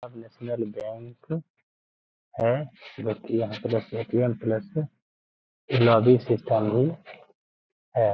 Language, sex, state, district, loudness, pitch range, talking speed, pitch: Hindi, male, Bihar, Gaya, -26 LUFS, 110-125 Hz, 80 wpm, 115 Hz